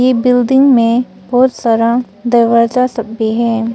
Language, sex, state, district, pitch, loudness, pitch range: Hindi, female, Arunachal Pradesh, Papum Pare, 235 Hz, -12 LUFS, 230-250 Hz